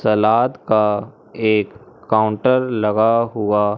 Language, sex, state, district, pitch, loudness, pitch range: Hindi, male, Madhya Pradesh, Umaria, 110 Hz, -17 LUFS, 105-115 Hz